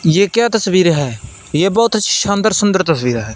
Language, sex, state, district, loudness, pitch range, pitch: Hindi, male, Punjab, Fazilka, -14 LUFS, 145-210 Hz, 190 Hz